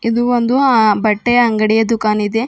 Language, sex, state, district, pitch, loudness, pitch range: Kannada, female, Karnataka, Bidar, 230 Hz, -13 LUFS, 215-240 Hz